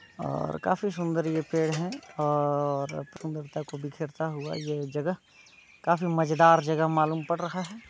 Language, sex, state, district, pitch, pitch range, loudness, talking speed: Hindi, male, Bihar, Muzaffarpur, 160 Hz, 150-170 Hz, -28 LUFS, 150 wpm